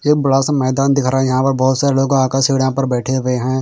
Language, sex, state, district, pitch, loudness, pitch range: Hindi, male, Bihar, Patna, 135 Hz, -15 LUFS, 130-135 Hz